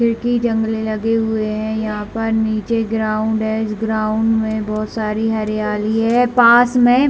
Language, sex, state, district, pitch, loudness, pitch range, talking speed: Hindi, female, Chhattisgarh, Bilaspur, 220 Hz, -17 LUFS, 215-225 Hz, 160 wpm